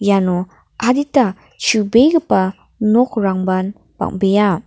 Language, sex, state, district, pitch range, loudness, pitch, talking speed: Garo, female, Meghalaya, North Garo Hills, 190-235 Hz, -16 LUFS, 205 Hz, 65 wpm